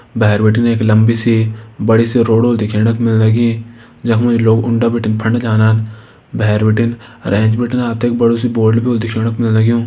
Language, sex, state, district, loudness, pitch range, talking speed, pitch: Hindi, male, Uttarakhand, Uttarkashi, -13 LUFS, 110-115 Hz, 205 wpm, 115 Hz